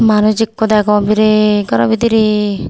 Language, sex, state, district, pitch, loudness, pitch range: Chakma, female, Tripura, Unakoti, 215 Hz, -12 LUFS, 210-220 Hz